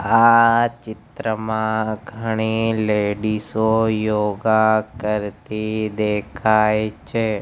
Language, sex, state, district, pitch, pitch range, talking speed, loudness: Gujarati, male, Gujarat, Gandhinagar, 110 Hz, 105-110 Hz, 75 wpm, -19 LUFS